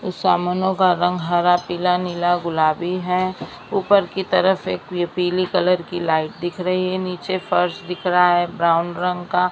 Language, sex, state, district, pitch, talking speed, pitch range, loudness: Hindi, female, Maharashtra, Mumbai Suburban, 180 Hz, 190 wpm, 175-185 Hz, -20 LUFS